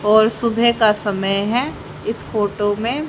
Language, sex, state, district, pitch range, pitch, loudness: Hindi, female, Haryana, Jhajjar, 205-235 Hz, 215 Hz, -18 LUFS